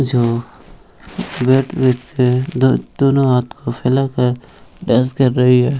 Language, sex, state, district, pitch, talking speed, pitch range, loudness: Hindi, male, Bihar, Jamui, 125 Hz, 115 wpm, 125-130 Hz, -16 LUFS